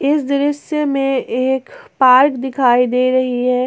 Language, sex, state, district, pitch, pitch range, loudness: Hindi, female, Jharkhand, Ranchi, 265 Hz, 255-285 Hz, -15 LUFS